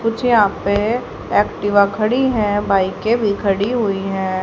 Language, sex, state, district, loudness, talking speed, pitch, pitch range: Hindi, female, Haryana, Rohtak, -17 LUFS, 150 wpm, 205 Hz, 200-230 Hz